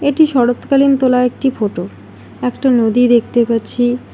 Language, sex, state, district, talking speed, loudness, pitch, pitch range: Bengali, female, West Bengal, Alipurduar, 130 wpm, -14 LUFS, 245 Hz, 230-260 Hz